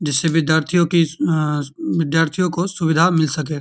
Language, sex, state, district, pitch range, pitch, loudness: Hindi, male, Bihar, Begusarai, 155-170 Hz, 160 Hz, -18 LUFS